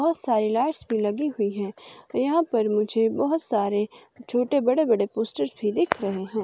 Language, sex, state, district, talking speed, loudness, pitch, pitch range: Hindi, female, Himachal Pradesh, Shimla, 185 wpm, -25 LUFS, 225 Hz, 210-280 Hz